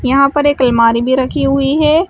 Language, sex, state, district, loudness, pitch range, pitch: Hindi, female, Uttar Pradesh, Shamli, -12 LUFS, 255-290 Hz, 275 Hz